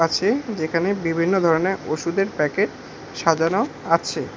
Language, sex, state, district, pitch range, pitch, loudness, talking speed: Bengali, male, West Bengal, Alipurduar, 165-195 Hz, 170 Hz, -21 LUFS, 95 wpm